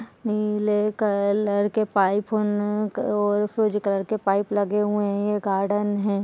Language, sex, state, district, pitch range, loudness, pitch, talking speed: Hindi, female, Uttarakhand, Tehri Garhwal, 200-210 Hz, -23 LUFS, 210 Hz, 145 wpm